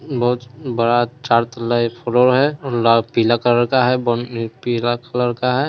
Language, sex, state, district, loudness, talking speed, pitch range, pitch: Hindi, male, Bihar, Sitamarhi, -18 LUFS, 160 wpm, 120-125 Hz, 120 Hz